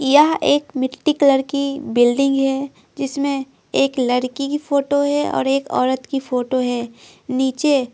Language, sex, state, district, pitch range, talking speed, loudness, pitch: Hindi, female, Bihar, Patna, 255-285 Hz, 145 wpm, -19 LUFS, 275 Hz